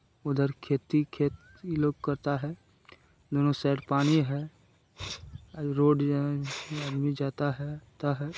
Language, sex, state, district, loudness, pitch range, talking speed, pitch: Hindi, male, Bihar, Jamui, -30 LUFS, 140-150 Hz, 105 wpm, 145 Hz